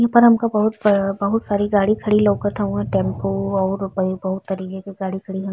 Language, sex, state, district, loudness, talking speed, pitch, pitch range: Bhojpuri, female, Uttar Pradesh, Ghazipur, -19 LUFS, 225 wpm, 200 Hz, 195-210 Hz